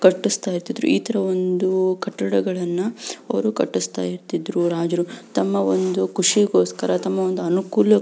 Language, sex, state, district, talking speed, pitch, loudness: Kannada, female, Karnataka, Belgaum, 120 wpm, 180 Hz, -21 LUFS